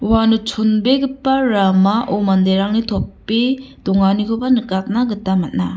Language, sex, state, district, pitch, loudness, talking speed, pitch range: Garo, female, Meghalaya, West Garo Hills, 215 Hz, -16 LUFS, 95 wpm, 195-235 Hz